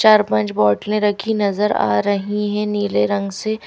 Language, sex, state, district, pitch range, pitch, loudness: Hindi, female, Haryana, Rohtak, 165-210 Hz, 205 Hz, -18 LUFS